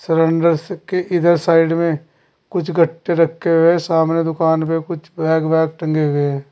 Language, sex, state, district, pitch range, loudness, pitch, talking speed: Hindi, male, Uttar Pradesh, Saharanpur, 160-170 Hz, -17 LUFS, 165 Hz, 165 wpm